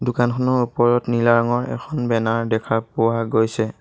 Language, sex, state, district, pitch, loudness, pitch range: Assamese, male, Assam, Sonitpur, 120 Hz, -20 LUFS, 115-120 Hz